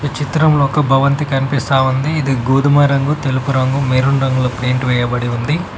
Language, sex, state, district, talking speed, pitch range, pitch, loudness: Telugu, male, Telangana, Mahabubabad, 155 wpm, 130-145 Hz, 135 Hz, -15 LUFS